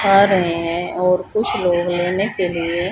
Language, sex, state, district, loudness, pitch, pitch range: Hindi, female, Haryana, Charkhi Dadri, -18 LUFS, 180 Hz, 175-195 Hz